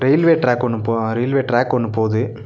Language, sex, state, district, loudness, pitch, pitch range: Tamil, male, Tamil Nadu, Nilgiris, -17 LUFS, 120 Hz, 115-130 Hz